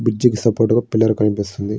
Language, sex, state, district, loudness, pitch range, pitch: Telugu, male, Andhra Pradesh, Srikakulam, -17 LUFS, 105-115 Hz, 110 Hz